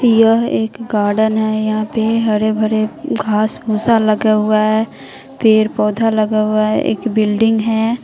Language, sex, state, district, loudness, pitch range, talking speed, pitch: Hindi, female, Bihar, West Champaran, -15 LUFS, 215-225 Hz, 155 wpm, 215 Hz